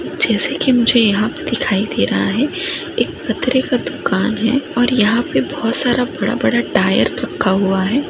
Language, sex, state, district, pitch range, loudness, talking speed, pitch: Hindi, female, Rajasthan, Nagaur, 225-270 Hz, -16 LUFS, 170 wpm, 245 Hz